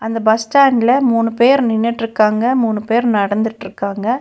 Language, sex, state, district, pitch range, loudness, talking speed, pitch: Tamil, female, Tamil Nadu, Nilgiris, 220-240 Hz, -15 LUFS, 130 wpm, 230 Hz